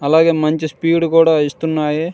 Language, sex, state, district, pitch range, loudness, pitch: Telugu, male, Andhra Pradesh, Srikakulam, 155-165 Hz, -15 LUFS, 160 Hz